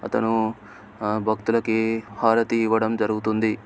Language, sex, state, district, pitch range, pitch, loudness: Telugu, male, Telangana, Nalgonda, 110-115 Hz, 110 Hz, -23 LUFS